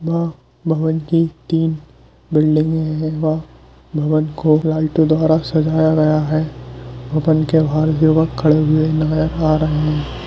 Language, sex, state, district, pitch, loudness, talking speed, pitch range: Hindi, male, Bihar, Madhepura, 155 Hz, -17 LUFS, 90 wpm, 155-160 Hz